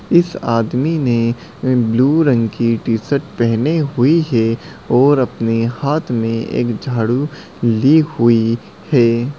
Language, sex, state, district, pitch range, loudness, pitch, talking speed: Hindi, male, Bihar, Gaya, 115-145 Hz, -16 LUFS, 120 Hz, 120 wpm